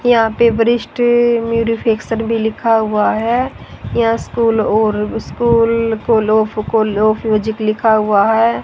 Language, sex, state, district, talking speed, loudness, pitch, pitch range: Hindi, female, Haryana, Rohtak, 130 wpm, -15 LUFS, 225 Hz, 220-230 Hz